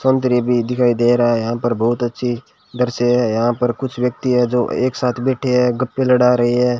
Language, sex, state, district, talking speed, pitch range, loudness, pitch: Hindi, male, Rajasthan, Bikaner, 230 wpm, 120-125 Hz, -17 LUFS, 125 Hz